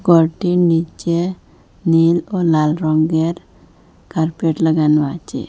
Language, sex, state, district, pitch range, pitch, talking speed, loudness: Bengali, female, Assam, Hailakandi, 160-170 Hz, 165 Hz, 100 wpm, -17 LUFS